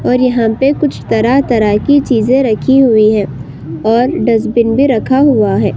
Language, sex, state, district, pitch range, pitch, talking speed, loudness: Hindi, female, Uttar Pradesh, Budaun, 215-265 Hz, 235 Hz, 165 wpm, -11 LUFS